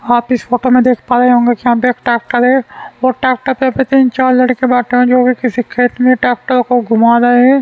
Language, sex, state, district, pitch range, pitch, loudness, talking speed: Hindi, male, Haryana, Rohtak, 245-255 Hz, 250 Hz, -11 LUFS, 260 wpm